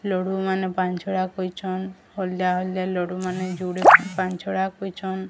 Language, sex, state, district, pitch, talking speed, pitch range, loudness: Odia, female, Odisha, Sambalpur, 185 Hz, 170 wpm, 185-190 Hz, -23 LUFS